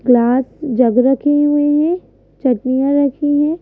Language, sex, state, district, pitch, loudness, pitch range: Hindi, female, Madhya Pradesh, Bhopal, 280 Hz, -15 LUFS, 255-290 Hz